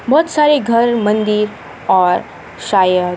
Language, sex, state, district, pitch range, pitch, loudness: Hindi, female, Uttarakhand, Uttarkashi, 185-245 Hz, 210 Hz, -14 LUFS